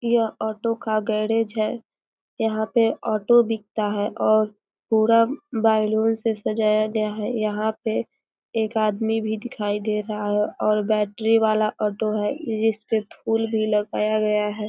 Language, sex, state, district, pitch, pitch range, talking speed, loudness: Hindi, female, Bihar, East Champaran, 220 Hz, 215-225 Hz, 150 wpm, -23 LUFS